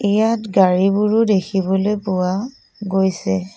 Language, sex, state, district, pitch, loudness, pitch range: Assamese, female, Assam, Sonitpur, 195 Hz, -18 LUFS, 185-210 Hz